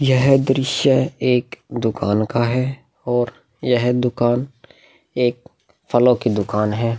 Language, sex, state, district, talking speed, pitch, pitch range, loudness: Hindi, male, Bihar, Vaishali, 120 wpm, 125 Hz, 120-130 Hz, -19 LUFS